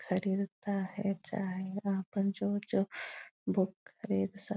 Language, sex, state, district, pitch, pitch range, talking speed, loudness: Hindi, female, Bihar, Jahanabad, 195 Hz, 190-200 Hz, 145 wpm, -35 LUFS